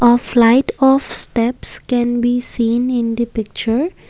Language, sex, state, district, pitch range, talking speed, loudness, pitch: English, female, Assam, Kamrup Metropolitan, 235-250 Hz, 145 wpm, -16 LUFS, 240 Hz